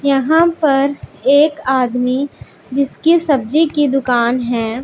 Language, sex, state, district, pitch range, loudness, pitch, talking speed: Hindi, female, Punjab, Pathankot, 250-300 Hz, -15 LUFS, 275 Hz, 110 wpm